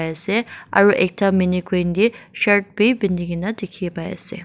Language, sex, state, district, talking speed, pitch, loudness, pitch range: Nagamese, female, Nagaland, Dimapur, 150 wpm, 195 Hz, -19 LUFS, 180-210 Hz